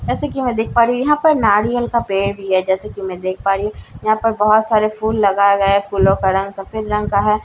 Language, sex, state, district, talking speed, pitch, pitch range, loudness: Hindi, female, Bihar, Katihar, 280 wpm, 210 Hz, 195-225 Hz, -16 LUFS